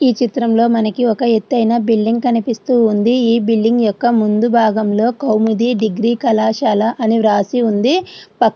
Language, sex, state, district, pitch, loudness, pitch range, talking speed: Telugu, female, Andhra Pradesh, Srikakulam, 230 Hz, -14 LUFS, 220-240 Hz, 145 wpm